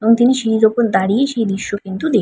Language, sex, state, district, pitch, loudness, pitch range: Bengali, female, West Bengal, Paschim Medinipur, 220 Hz, -16 LUFS, 195-235 Hz